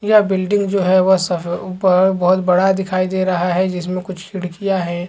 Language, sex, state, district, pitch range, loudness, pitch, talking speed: Hindi, male, Chhattisgarh, Raigarh, 180-190 Hz, -17 LUFS, 185 Hz, 200 wpm